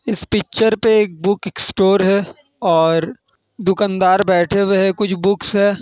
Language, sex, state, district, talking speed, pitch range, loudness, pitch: Hindi, male, Bihar, Kishanganj, 145 wpm, 190-205 Hz, -16 LUFS, 195 Hz